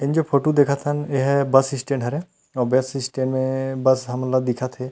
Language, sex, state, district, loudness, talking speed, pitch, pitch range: Chhattisgarhi, male, Chhattisgarh, Rajnandgaon, -21 LUFS, 220 wpm, 135 Hz, 130-140 Hz